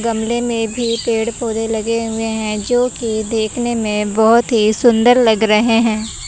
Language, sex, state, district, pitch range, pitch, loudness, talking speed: Hindi, female, Chandigarh, Chandigarh, 220-235 Hz, 225 Hz, -15 LUFS, 170 wpm